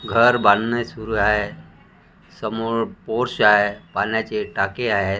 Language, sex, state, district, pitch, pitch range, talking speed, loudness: Marathi, male, Maharashtra, Washim, 105 Hz, 100-115 Hz, 115 wpm, -20 LUFS